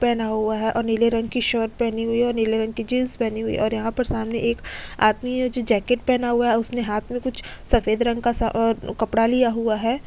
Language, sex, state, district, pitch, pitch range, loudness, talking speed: Hindi, female, Uttar Pradesh, Etah, 230 Hz, 225-240 Hz, -22 LUFS, 270 wpm